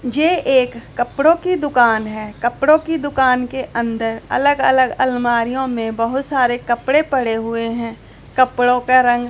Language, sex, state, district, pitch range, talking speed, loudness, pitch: Hindi, female, Punjab, Pathankot, 235-270 Hz, 155 wpm, -17 LUFS, 250 Hz